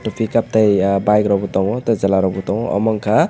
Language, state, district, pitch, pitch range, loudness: Kokborok, Tripura, West Tripura, 105 Hz, 100-110 Hz, -17 LUFS